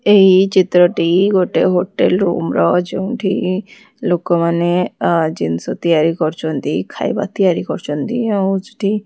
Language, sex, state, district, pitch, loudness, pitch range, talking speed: Odia, female, Odisha, Khordha, 185 Hz, -16 LUFS, 170-200 Hz, 120 wpm